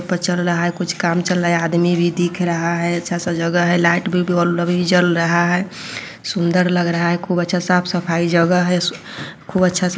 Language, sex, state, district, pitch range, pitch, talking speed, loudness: Hindi, female, Bihar, Sitamarhi, 170-180 Hz, 175 Hz, 230 wpm, -17 LUFS